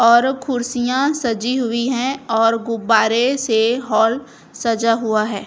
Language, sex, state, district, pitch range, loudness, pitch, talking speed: Hindi, female, Chhattisgarh, Raipur, 225-255 Hz, -18 LUFS, 235 Hz, 130 wpm